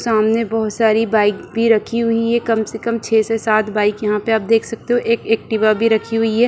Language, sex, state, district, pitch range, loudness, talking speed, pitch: Hindi, female, Bihar, Supaul, 215-230 Hz, -17 LUFS, 260 wpm, 225 Hz